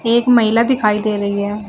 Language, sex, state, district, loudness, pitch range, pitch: Hindi, female, Uttar Pradesh, Shamli, -15 LUFS, 205-235 Hz, 215 Hz